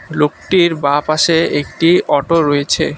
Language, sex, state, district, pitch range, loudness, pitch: Bengali, male, West Bengal, Alipurduar, 145-165 Hz, -14 LUFS, 155 Hz